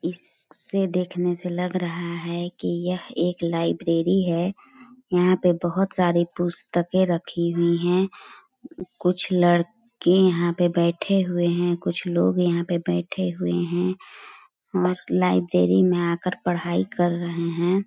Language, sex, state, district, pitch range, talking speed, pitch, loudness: Hindi, female, Chhattisgarh, Balrampur, 170-180 Hz, 140 wpm, 175 Hz, -23 LUFS